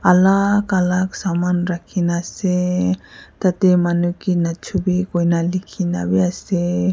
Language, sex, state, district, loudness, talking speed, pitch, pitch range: Nagamese, female, Nagaland, Kohima, -19 LUFS, 115 wpm, 180 Hz, 170-185 Hz